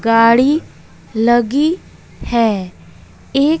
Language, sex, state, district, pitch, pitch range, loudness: Hindi, female, Bihar, West Champaran, 240 Hz, 230-290 Hz, -15 LUFS